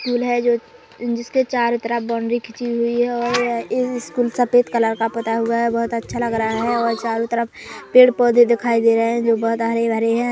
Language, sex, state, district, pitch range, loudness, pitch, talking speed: Hindi, female, Chhattisgarh, Korba, 230-240 Hz, -19 LUFS, 235 Hz, 225 wpm